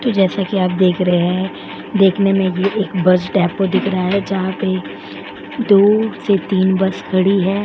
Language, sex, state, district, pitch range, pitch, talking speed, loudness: Hindi, female, Goa, North and South Goa, 185-195 Hz, 190 Hz, 195 wpm, -16 LUFS